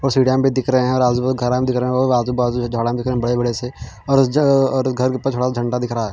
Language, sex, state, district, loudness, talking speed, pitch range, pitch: Hindi, male, Bihar, Patna, -18 LUFS, 305 wpm, 120-130 Hz, 125 Hz